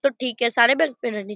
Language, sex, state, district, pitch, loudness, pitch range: Hindi, female, Bihar, Purnia, 240 Hz, -20 LUFS, 235-265 Hz